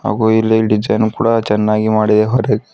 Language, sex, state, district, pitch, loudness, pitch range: Kannada, male, Karnataka, Bidar, 110 Hz, -14 LUFS, 105-110 Hz